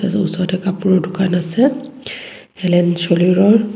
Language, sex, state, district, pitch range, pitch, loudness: Assamese, female, Assam, Kamrup Metropolitan, 180-205 Hz, 185 Hz, -15 LUFS